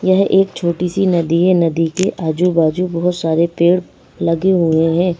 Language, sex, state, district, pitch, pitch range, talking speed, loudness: Hindi, female, Madhya Pradesh, Bhopal, 175 Hz, 165-180 Hz, 175 wpm, -15 LUFS